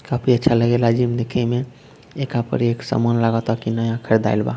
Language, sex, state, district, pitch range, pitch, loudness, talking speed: Bhojpuri, male, Bihar, Sitamarhi, 115-125 Hz, 120 Hz, -19 LUFS, 185 wpm